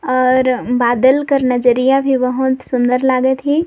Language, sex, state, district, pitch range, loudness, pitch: Sadri, female, Chhattisgarh, Jashpur, 250-265 Hz, -14 LUFS, 255 Hz